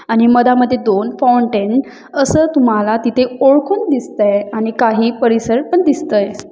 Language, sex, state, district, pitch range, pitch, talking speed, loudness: Marathi, female, Maharashtra, Aurangabad, 220-270 Hz, 240 Hz, 140 wpm, -13 LUFS